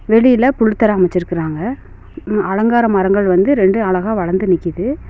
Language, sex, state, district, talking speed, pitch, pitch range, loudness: Tamil, female, Tamil Nadu, Nilgiris, 130 wpm, 200 Hz, 185-225 Hz, -15 LUFS